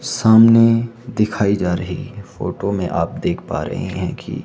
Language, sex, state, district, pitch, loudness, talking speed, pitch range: Hindi, male, Himachal Pradesh, Shimla, 110 Hz, -17 LUFS, 160 wpm, 100-115 Hz